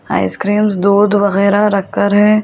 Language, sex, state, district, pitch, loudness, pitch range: Hindi, female, Delhi, New Delhi, 205 Hz, -13 LUFS, 200-210 Hz